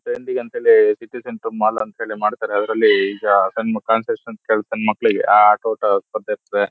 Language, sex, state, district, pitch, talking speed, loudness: Kannada, male, Karnataka, Shimoga, 115 Hz, 115 wpm, -18 LUFS